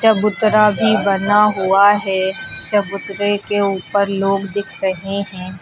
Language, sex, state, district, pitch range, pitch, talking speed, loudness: Hindi, female, Uttar Pradesh, Lucknow, 195-205 Hz, 200 Hz, 130 wpm, -16 LUFS